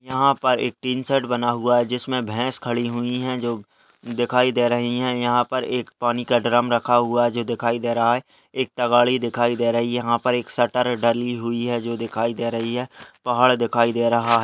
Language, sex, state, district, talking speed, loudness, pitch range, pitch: Hindi, male, Uttarakhand, Tehri Garhwal, 225 wpm, -21 LUFS, 120-125 Hz, 120 Hz